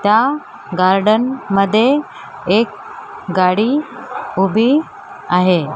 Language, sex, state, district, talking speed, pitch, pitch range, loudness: Marathi, female, Maharashtra, Mumbai Suburban, 75 wpm, 220 Hz, 195-295 Hz, -15 LUFS